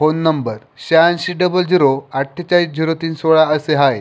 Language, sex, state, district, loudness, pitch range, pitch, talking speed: Marathi, male, Maharashtra, Pune, -15 LUFS, 150-175 Hz, 160 Hz, 165 wpm